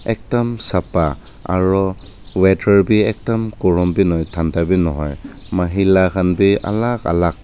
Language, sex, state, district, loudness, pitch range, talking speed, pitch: Nagamese, male, Nagaland, Dimapur, -17 LUFS, 90-105 Hz, 145 wpm, 95 Hz